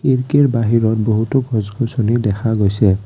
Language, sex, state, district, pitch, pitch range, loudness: Assamese, male, Assam, Kamrup Metropolitan, 115 Hz, 110-125 Hz, -16 LUFS